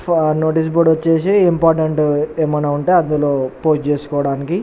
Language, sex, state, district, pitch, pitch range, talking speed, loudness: Telugu, male, Telangana, Nalgonda, 155 Hz, 145-165 Hz, 115 wpm, -16 LUFS